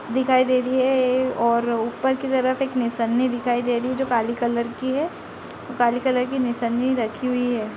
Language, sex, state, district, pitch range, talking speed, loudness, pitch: Hindi, female, Bihar, Gopalganj, 235-260 Hz, 225 wpm, -22 LUFS, 250 Hz